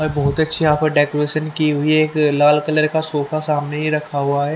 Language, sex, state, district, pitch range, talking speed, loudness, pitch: Hindi, male, Haryana, Charkhi Dadri, 145-155 Hz, 235 wpm, -17 LUFS, 150 Hz